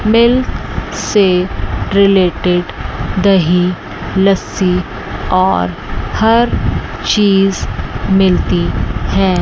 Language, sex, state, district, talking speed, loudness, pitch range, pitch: Hindi, female, Chandigarh, Chandigarh, 65 wpm, -14 LUFS, 180-200 Hz, 190 Hz